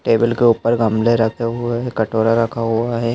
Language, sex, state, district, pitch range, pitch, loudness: Hindi, male, Madhya Pradesh, Dhar, 115-120 Hz, 115 Hz, -17 LUFS